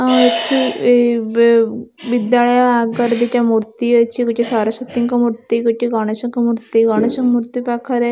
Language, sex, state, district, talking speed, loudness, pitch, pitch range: Odia, female, Odisha, Khordha, 135 wpm, -15 LUFS, 240 Hz, 230-245 Hz